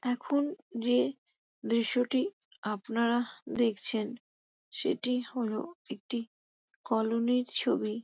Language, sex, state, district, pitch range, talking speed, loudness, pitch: Bengali, female, West Bengal, Jhargram, 225-260 Hz, 80 wpm, -31 LUFS, 245 Hz